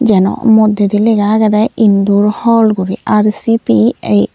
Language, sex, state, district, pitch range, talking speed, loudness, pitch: Chakma, female, Tripura, Unakoti, 200-220 Hz, 110 wpm, -11 LUFS, 210 Hz